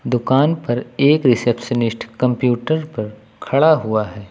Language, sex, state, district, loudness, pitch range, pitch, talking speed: Hindi, male, Uttar Pradesh, Lucknow, -17 LUFS, 115-140 Hz, 120 Hz, 125 wpm